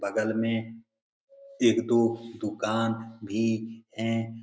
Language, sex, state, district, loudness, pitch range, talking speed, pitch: Hindi, male, Bihar, Lakhisarai, -28 LUFS, 110-115 Hz, 95 wpm, 115 Hz